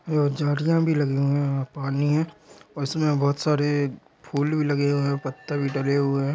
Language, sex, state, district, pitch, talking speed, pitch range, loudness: Angika, male, Bihar, Samastipur, 145 Hz, 210 wpm, 140-150 Hz, -24 LUFS